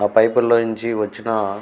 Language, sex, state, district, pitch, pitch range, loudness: Telugu, male, Andhra Pradesh, Guntur, 110 Hz, 105-115 Hz, -19 LUFS